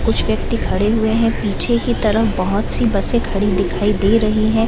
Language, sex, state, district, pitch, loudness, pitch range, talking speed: Hindi, female, Bihar, Gaya, 215 Hz, -17 LUFS, 200-225 Hz, 205 wpm